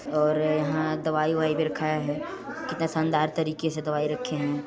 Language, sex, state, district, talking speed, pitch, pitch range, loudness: Hindi, male, Chhattisgarh, Sarguja, 180 wpm, 155 Hz, 150-160 Hz, -27 LUFS